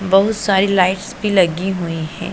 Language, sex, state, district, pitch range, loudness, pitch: Hindi, female, Punjab, Pathankot, 180-200 Hz, -17 LUFS, 190 Hz